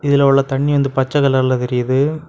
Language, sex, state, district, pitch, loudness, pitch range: Tamil, male, Tamil Nadu, Kanyakumari, 135 Hz, -16 LUFS, 130-140 Hz